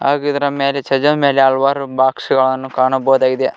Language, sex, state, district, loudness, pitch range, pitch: Kannada, male, Karnataka, Koppal, -15 LUFS, 130-140 Hz, 135 Hz